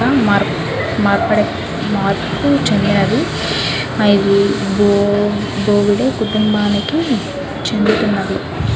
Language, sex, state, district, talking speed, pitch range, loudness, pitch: Telugu, female, Andhra Pradesh, Krishna, 50 wpm, 200-215 Hz, -15 LUFS, 205 Hz